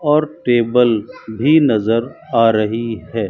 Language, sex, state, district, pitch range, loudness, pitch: Hindi, male, Rajasthan, Bikaner, 110-125 Hz, -16 LUFS, 115 Hz